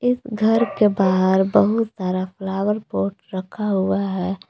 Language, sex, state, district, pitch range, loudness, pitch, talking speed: Hindi, female, Jharkhand, Palamu, 190-215 Hz, -20 LUFS, 195 Hz, 145 wpm